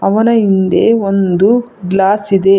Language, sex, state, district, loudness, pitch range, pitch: Kannada, female, Karnataka, Bangalore, -12 LUFS, 195-220 Hz, 195 Hz